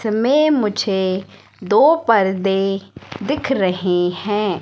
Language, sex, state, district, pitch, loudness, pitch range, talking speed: Hindi, female, Madhya Pradesh, Katni, 195 Hz, -17 LUFS, 190-230 Hz, 90 wpm